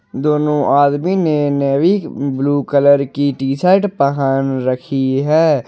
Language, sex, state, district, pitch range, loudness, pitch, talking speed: Hindi, male, Jharkhand, Ranchi, 135-150 Hz, -15 LUFS, 140 Hz, 125 wpm